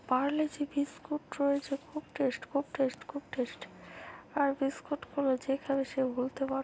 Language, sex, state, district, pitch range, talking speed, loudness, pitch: Bengali, female, West Bengal, Dakshin Dinajpur, 270-290 Hz, 170 wpm, -34 LUFS, 275 Hz